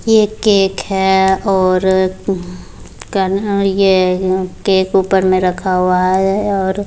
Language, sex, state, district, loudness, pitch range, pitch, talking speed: Hindi, female, Bihar, Muzaffarpur, -14 LUFS, 185-195 Hz, 190 Hz, 130 wpm